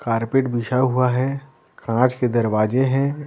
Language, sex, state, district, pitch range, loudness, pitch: Hindi, male, Bihar, Patna, 120-135 Hz, -20 LUFS, 125 Hz